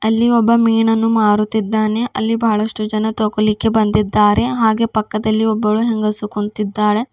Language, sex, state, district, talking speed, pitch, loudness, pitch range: Kannada, female, Karnataka, Bidar, 120 wpm, 215 Hz, -16 LUFS, 215-225 Hz